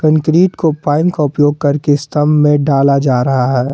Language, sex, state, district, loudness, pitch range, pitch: Hindi, male, Jharkhand, Palamu, -12 LUFS, 140-155 Hz, 145 Hz